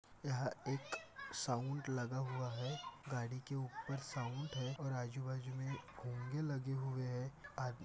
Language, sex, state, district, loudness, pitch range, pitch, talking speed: Hindi, male, Maharashtra, Dhule, -44 LUFS, 125-140 Hz, 130 Hz, 145 wpm